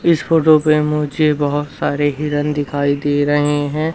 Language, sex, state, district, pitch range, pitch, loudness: Hindi, male, Madhya Pradesh, Umaria, 145-155 Hz, 145 Hz, -16 LUFS